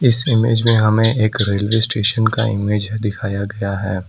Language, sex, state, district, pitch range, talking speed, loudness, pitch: Hindi, male, Assam, Kamrup Metropolitan, 100-115 Hz, 175 wpm, -16 LUFS, 110 Hz